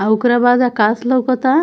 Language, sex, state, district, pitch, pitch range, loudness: Bhojpuri, female, Bihar, Muzaffarpur, 245 Hz, 230-255 Hz, -14 LUFS